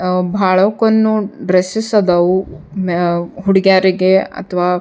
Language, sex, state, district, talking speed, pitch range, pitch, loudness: Kannada, female, Karnataka, Bijapur, 100 wpm, 180-200 Hz, 185 Hz, -14 LUFS